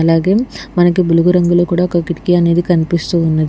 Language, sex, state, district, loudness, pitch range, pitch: Telugu, female, Telangana, Hyderabad, -13 LUFS, 165-175 Hz, 175 Hz